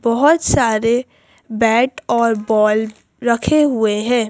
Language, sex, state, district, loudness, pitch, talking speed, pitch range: Hindi, female, Madhya Pradesh, Bhopal, -16 LUFS, 230 Hz, 110 wpm, 220-245 Hz